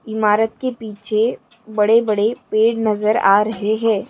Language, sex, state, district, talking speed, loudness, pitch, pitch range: Hindi, female, Maharashtra, Solapur, 145 wpm, -17 LUFS, 220 Hz, 210-225 Hz